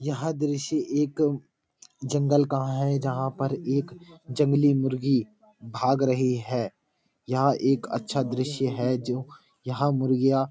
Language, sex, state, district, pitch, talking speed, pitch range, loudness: Hindi, male, Uttarakhand, Uttarkashi, 135 Hz, 130 wpm, 130-145 Hz, -26 LUFS